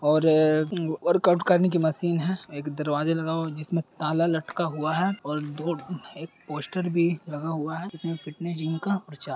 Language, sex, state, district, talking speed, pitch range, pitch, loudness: Hindi, male, Bihar, Purnia, 185 wpm, 155-175 Hz, 160 Hz, -26 LUFS